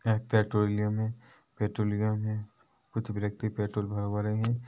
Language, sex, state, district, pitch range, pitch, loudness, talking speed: Hindi, male, Chhattisgarh, Rajnandgaon, 105-110 Hz, 105 Hz, -31 LUFS, 140 wpm